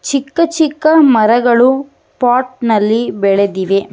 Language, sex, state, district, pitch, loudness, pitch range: Kannada, female, Karnataka, Bangalore, 245 Hz, -12 LUFS, 215-280 Hz